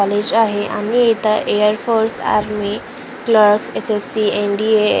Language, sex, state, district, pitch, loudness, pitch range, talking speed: Marathi, female, Maharashtra, Gondia, 215 Hz, -16 LUFS, 210-225 Hz, 145 wpm